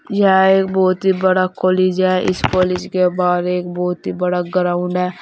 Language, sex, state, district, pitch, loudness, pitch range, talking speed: Hindi, female, Uttar Pradesh, Saharanpur, 185 Hz, -16 LUFS, 180-185 Hz, 195 wpm